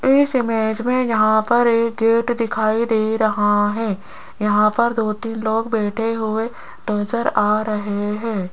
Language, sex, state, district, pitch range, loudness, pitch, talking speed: Hindi, female, Rajasthan, Jaipur, 210-230 Hz, -19 LUFS, 220 Hz, 155 wpm